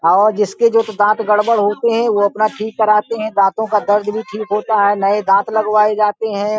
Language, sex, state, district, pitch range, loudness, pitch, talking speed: Hindi, male, Uttar Pradesh, Hamirpur, 205-220 Hz, -15 LUFS, 210 Hz, 225 wpm